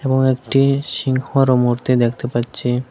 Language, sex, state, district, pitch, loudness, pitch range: Bengali, male, Assam, Hailakandi, 130 Hz, -17 LUFS, 120-135 Hz